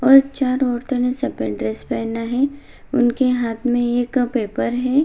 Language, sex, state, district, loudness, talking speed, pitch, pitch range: Hindi, female, Bihar, Bhagalpur, -20 LUFS, 155 wpm, 250 Hz, 240-265 Hz